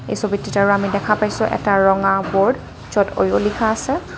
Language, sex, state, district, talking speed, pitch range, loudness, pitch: Assamese, female, Assam, Kamrup Metropolitan, 170 wpm, 195-210 Hz, -18 LUFS, 200 Hz